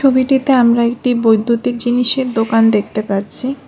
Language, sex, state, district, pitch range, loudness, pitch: Bengali, female, West Bengal, Alipurduar, 225-260 Hz, -14 LUFS, 240 Hz